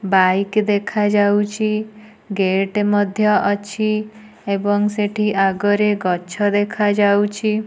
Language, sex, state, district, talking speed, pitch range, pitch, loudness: Odia, female, Odisha, Nuapada, 80 wpm, 200-215 Hz, 205 Hz, -18 LUFS